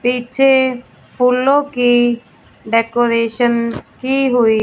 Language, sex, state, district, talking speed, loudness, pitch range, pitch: Hindi, female, Punjab, Fazilka, 80 wpm, -15 LUFS, 235-255 Hz, 245 Hz